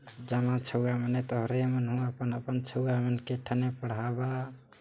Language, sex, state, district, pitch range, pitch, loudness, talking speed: Chhattisgarhi, male, Chhattisgarh, Jashpur, 120-125 Hz, 125 Hz, -32 LUFS, 150 wpm